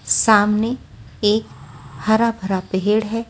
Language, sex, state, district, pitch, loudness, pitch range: Hindi, female, Maharashtra, Washim, 210 Hz, -18 LUFS, 190-225 Hz